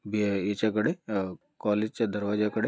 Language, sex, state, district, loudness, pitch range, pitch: Marathi, male, Maharashtra, Pune, -29 LUFS, 100-110 Hz, 105 Hz